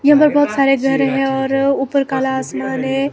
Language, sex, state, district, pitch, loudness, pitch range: Hindi, female, Himachal Pradesh, Shimla, 270 Hz, -16 LUFS, 265-275 Hz